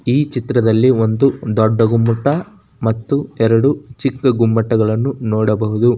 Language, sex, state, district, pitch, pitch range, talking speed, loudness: Kannada, male, Karnataka, Bijapur, 115 Hz, 110-135 Hz, 100 wpm, -16 LUFS